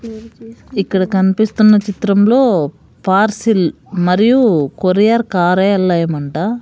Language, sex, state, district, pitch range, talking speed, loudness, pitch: Telugu, female, Andhra Pradesh, Sri Satya Sai, 180-220 Hz, 80 wpm, -14 LUFS, 200 Hz